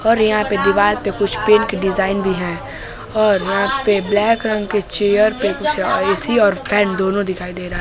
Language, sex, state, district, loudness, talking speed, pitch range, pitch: Hindi, female, Bihar, West Champaran, -16 LUFS, 205 wpm, 195-215 Hz, 205 Hz